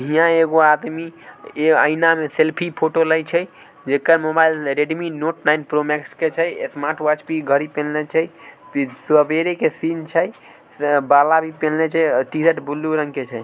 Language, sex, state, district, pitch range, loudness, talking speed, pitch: Maithili, male, Bihar, Samastipur, 150-165 Hz, -18 LUFS, 150 wpm, 155 Hz